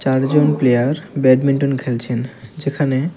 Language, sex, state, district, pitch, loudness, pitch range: Bengali, male, Tripura, West Tripura, 135 Hz, -17 LUFS, 125-145 Hz